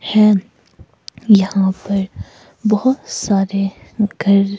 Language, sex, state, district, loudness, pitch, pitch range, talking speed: Hindi, female, Himachal Pradesh, Shimla, -16 LUFS, 200 Hz, 195-210 Hz, 80 wpm